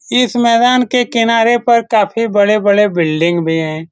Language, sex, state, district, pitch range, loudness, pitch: Hindi, male, Bihar, Saran, 175-240 Hz, -12 LUFS, 225 Hz